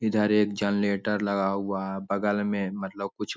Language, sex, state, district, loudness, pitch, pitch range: Hindi, male, Bihar, Jamui, -27 LUFS, 100 Hz, 100-105 Hz